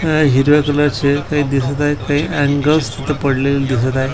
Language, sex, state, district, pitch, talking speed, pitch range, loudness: Marathi, male, Maharashtra, Washim, 145 Hz, 175 wpm, 135-150 Hz, -15 LUFS